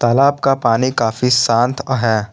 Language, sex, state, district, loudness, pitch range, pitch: Hindi, male, Jharkhand, Garhwa, -15 LUFS, 115-135 Hz, 125 Hz